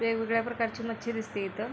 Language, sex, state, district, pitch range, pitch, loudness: Marathi, female, Maharashtra, Aurangabad, 220-230 Hz, 230 Hz, -32 LUFS